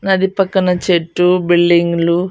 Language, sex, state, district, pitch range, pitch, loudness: Telugu, female, Andhra Pradesh, Annamaya, 170-190 Hz, 180 Hz, -14 LUFS